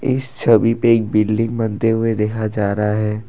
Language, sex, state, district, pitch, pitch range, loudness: Hindi, male, Assam, Kamrup Metropolitan, 110 Hz, 105-115 Hz, -17 LUFS